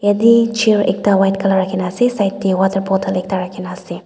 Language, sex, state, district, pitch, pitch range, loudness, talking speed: Nagamese, female, Nagaland, Dimapur, 195 Hz, 185-205 Hz, -15 LUFS, 250 wpm